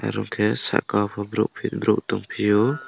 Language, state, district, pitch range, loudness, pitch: Kokborok, Tripura, West Tripura, 105-110 Hz, -21 LUFS, 105 Hz